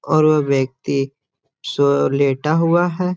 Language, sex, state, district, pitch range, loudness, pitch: Hindi, male, Bihar, Gaya, 135-155 Hz, -17 LUFS, 140 Hz